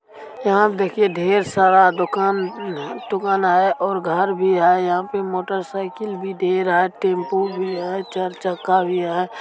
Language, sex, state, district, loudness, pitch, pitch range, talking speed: Maithili, female, Bihar, Supaul, -19 LUFS, 190 Hz, 180-195 Hz, 155 wpm